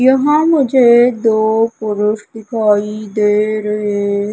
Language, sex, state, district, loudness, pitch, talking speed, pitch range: Hindi, female, Madhya Pradesh, Umaria, -14 LUFS, 215 Hz, 95 wpm, 210-240 Hz